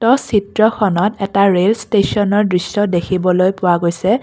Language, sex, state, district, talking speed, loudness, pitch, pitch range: Assamese, female, Assam, Kamrup Metropolitan, 125 wpm, -15 LUFS, 200 Hz, 180-210 Hz